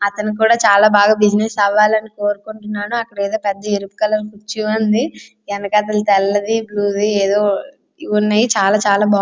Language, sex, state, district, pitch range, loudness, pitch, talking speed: Telugu, female, Andhra Pradesh, Srikakulam, 205-215 Hz, -16 LUFS, 210 Hz, 135 wpm